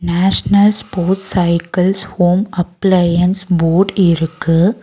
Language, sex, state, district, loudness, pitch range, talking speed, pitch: Tamil, female, Tamil Nadu, Nilgiris, -14 LUFS, 175-195 Hz, 85 wpm, 180 Hz